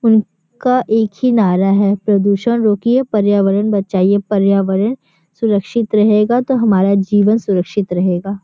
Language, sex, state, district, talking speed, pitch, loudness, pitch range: Hindi, female, Uttar Pradesh, Varanasi, 120 wpm, 205 Hz, -14 LUFS, 195-220 Hz